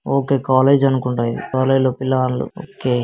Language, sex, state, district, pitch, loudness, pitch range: Telugu, male, Telangana, Nalgonda, 130 Hz, -18 LUFS, 125-135 Hz